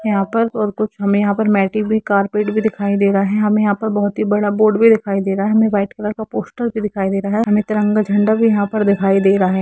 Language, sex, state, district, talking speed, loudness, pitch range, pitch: Hindi, female, Jharkhand, Sahebganj, 275 wpm, -16 LUFS, 200-215 Hz, 210 Hz